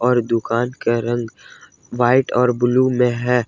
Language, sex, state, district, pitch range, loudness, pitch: Hindi, male, Jharkhand, Ranchi, 120-125 Hz, -18 LUFS, 120 Hz